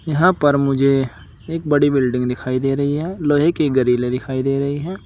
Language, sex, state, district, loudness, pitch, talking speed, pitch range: Hindi, male, Uttar Pradesh, Saharanpur, -18 LUFS, 140 Hz, 200 wpm, 130-150 Hz